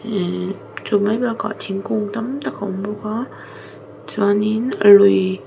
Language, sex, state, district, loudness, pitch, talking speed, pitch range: Mizo, female, Mizoram, Aizawl, -18 LUFS, 205 Hz, 145 wpm, 180-220 Hz